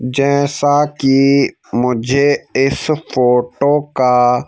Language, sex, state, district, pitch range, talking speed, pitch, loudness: Hindi, male, Madhya Pradesh, Bhopal, 125-145 Hz, 80 wpm, 135 Hz, -14 LUFS